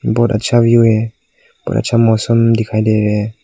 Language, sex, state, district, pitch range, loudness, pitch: Hindi, male, Nagaland, Kohima, 110-115 Hz, -13 LUFS, 110 Hz